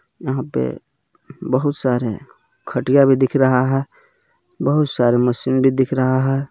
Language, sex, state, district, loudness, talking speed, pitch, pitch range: Hindi, male, Jharkhand, Garhwa, -18 LUFS, 145 wpm, 130 Hz, 125-140 Hz